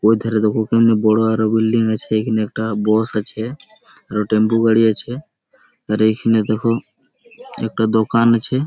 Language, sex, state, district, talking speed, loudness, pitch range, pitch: Bengali, male, West Bengal, Malda, 145 wpm, -17 LUFS, 110-115 Hz, 110 Hz